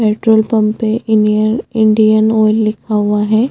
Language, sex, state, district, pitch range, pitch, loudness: Hindi, female, Chhattisgarh, Bastar, 215-220 Hz, 215 Hz, -12 LUFS